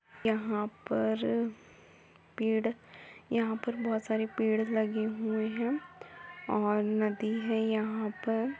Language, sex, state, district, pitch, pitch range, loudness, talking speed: Hindi, female, Uttar Pradesh, Etah, 220 Hz, 210-225 Hz, -32 LUFS, 110 wpm